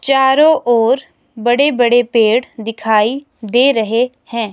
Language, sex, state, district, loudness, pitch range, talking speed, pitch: Hindi, female, Himachal Pradesh, Shimla, -13 LUFS, 225-265 Hz, 120 wpm, 240 Hz